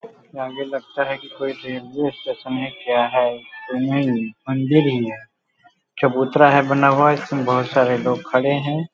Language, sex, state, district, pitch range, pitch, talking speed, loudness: Hindi, male, Bihar, Muzaffarpur, 125-140 Hz, 135 Hz, 160 wpm, -20 LUFS